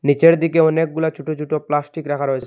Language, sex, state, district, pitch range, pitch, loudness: Bengali, male, Assam, Hailakandi, 145-160 Hz, 155 Hz, -18 LUFS